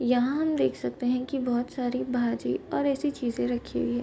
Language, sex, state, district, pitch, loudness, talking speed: Hindi, female, Bihar, Bhagalpur, 245 Hz, -28 LUFS, 240 wpm